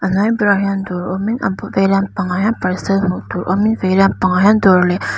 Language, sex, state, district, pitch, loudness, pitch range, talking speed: Mizo, female, Mizoram, Aizawl, 195 Hz, -15 LUFS, 185-200 Hz, 220 wpm